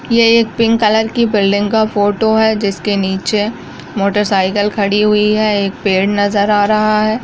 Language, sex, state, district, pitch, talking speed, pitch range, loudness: Hindi, female, Bihar, Kishanganj, 210 Hz, 180 wpm, 205-220 Hz, -13 LUFS